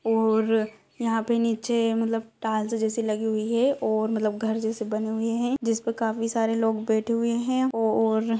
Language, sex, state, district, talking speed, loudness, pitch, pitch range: Hindi, female, Uttar Pradesh, Etah, 195 wpm, -25 LUFS, 225 Hz, 220-230 Hz